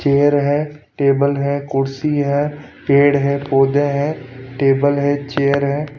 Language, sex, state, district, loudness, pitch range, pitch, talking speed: Hindi, male, Punjab, Pathankot, -17 LUFS, 140-145 Hz, 140 Hz, 140 wpm